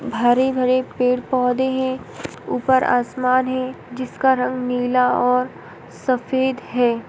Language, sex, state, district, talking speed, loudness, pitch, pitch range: Hindi, female, Uttar Pradesh, Etah, 110 wpm, -20 LUFS, 255 Hz, 250-260 Hz